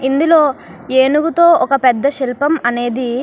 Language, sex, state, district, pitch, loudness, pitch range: Telugu, female, Andhra Pradesh, Krishna, 270 Hz, -13 LUFS, 250-300 Hz